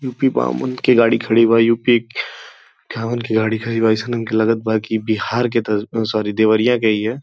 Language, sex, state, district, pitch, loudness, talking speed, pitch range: Bhojpuri, male, Uttar Pradesh, Gorakhpur, 115 Hz, -17 LUFS, 200 wpm, 110-115 Hz